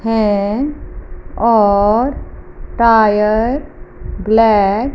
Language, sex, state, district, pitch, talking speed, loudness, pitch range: Hindi, female, Punjab, Fazilka, 220 Hz, 60 wpm, -13 LUFS, 210-235 Hz